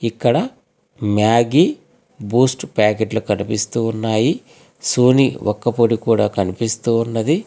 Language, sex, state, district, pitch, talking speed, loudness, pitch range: Telugu, male, Telangana, Hyderabad, 115 Hz, 90 wpm, -17 LUFS, 105-120 Hz